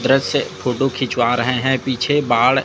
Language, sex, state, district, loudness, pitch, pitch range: Hindi, male, Chhattisgarh, Raipur, -18 LUFS, 130 Hz, 125-135 Hz